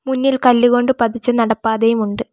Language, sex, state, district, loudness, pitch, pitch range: Malayalam, female, Kerala, Kollam, -15 LUFS, 240 Hz, 225-250 Hz